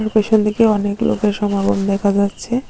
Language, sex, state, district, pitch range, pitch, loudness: Bengali, female, Tripura, Unakoti, 200-215 Hz, 210 Hz, -17 LUFS